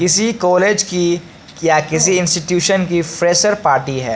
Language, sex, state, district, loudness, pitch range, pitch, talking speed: Hindi, male, Bihar, Patna, -14 LUFS, 165-185 Hz, 175 Hz, 145 wpm